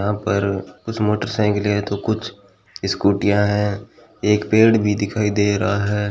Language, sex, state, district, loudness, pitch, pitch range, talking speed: Hindi, male, Rajasthan, Bikaner, -19 LUFS, 105 Hz, 100-110 Hz, 155 wpm